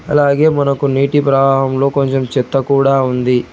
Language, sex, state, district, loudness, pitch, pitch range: Telugu, male, Telangana, Hyderabad, -13 LUFS, 135 Hz, 135-140 Hz